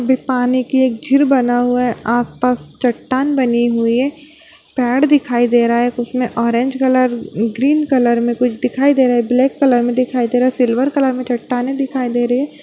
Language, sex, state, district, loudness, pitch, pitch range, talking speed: Hindi, female, Bihar, Bhagalpur, -15 LUFS, 250 Hz, 240-265 Hz, 190 wpm